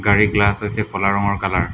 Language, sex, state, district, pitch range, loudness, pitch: Assamese, male, Assam, Hailakandi, 100-105 Hz, -18 LUFS, 100 Hz